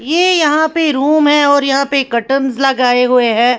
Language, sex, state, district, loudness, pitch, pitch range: Hindi, female, Haryana, Charkhi Dadri, -12 LUFS, 275 Hz, 250-300 Hz